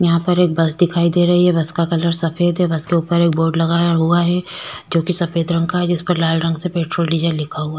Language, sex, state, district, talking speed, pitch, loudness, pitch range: Hindi, female, Chhattisgarh, Korba, 280 wpm, 170 Hz, -17 LUFS, 165-175 Hz